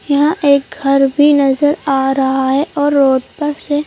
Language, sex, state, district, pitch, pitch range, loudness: Hindi, female, Madhya Pradesh, Bhopal, 285 Hz, 270-290 Hz, -13 LUFS